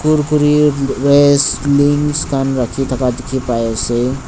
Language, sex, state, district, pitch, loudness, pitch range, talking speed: Nagamese, male, Nagaland, Dimapur, 135 Hz, -14 LUFS, 125-145 Hz, 125 wpm